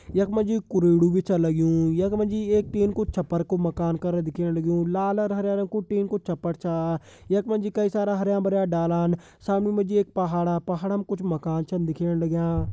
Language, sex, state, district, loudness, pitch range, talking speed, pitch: Hindi, male, Uttarakhand, Uttarkashi, -25 LUFS, 170-200 Hz, 220 wpm, 185 Hz